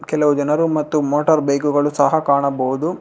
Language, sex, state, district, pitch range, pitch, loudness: Kannada, male, Karnataka, Bangalore, 140-155 Hz, 145 Hz, -17 LUFS